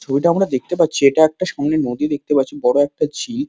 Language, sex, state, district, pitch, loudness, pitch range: Bengali, male, West Bengal, Kolkata, 150 Hz, -17 LUFS, 140-170 Hz